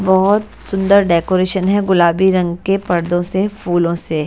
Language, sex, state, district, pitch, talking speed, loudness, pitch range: Hindi, female, Bihar, West Champaran, 185 Hz, 155 wpm, -15 LUFS, 175-195 Hz